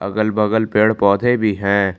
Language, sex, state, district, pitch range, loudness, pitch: Hindi, male, Jharkhand, Palamu, 100-110 Hz, -16 LUFS, 105 Hz